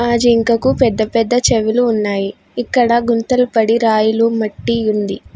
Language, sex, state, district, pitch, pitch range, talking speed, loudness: Telugu, female, Telangana, Hyderabad, 230 Hz, 220-240 Hz, 135 wpm, -15 LUFS